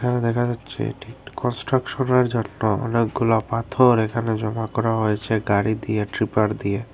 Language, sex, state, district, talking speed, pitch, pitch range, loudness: Bengali, male, Tripura, Unakoti, 145 wpm, 115 Hz, 110-125 Hz, -22 LUFS